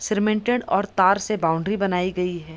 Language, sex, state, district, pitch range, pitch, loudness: Hindi, female, Bihar, Madhepura, 180-210 Hz, 195 Hz, -22 LUFS